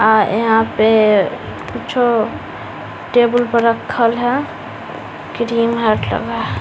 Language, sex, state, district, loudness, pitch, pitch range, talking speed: Hindi, female, Bihar, Samastipur, -15 LUFS, 230 Hz, 220-240 Hz, 100 wpm